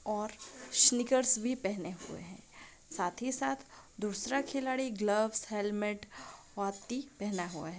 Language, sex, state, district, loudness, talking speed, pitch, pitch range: Hindi, female, Jharkhand, Jamtara, -33 LUFS, 140 wpm, 215 Hz, 200-255 Hz